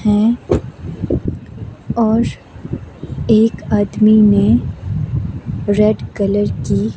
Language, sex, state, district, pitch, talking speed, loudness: Hindi, female, Himachal Pradesh, Shimla, 205 Hz, 70 wpm, -16 LUFS